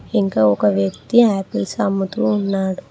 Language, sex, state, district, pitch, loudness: Telugu, female, Telangana, Mahabubabad, 190 Hz, -18 LUFS